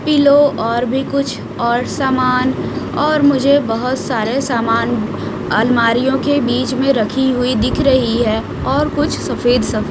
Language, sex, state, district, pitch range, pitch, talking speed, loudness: Hindi, female, Chhattisgarh, Raipur, 235-275 Hz, 255 Hz, 150 wpm, -15 LUFS